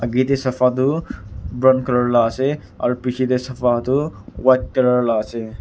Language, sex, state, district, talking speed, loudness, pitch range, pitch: Nagamese, male, Nagaland, Kohima, 160 wpm, -19 LUFS, 120-130 Hz, 125 Hz